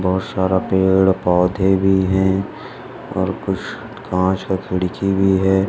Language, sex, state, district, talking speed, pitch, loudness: Hindi, male, Maharashtra, Sindhudurg, 115 wpm, 95 Hz, -18 LUFS